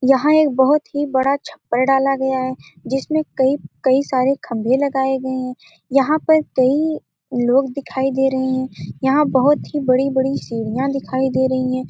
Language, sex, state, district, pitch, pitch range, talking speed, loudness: Hindi, female, Bihar, Gopalganj, 265 Hz, 260-280 Hz, 170 wpm, -18 LUFS